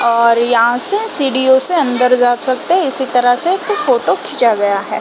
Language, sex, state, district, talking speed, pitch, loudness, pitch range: Hindi, female, Chhattisgarh, Balrampur, 230 wpm, 250 Hz, -12 LUFS, 235-280 Hz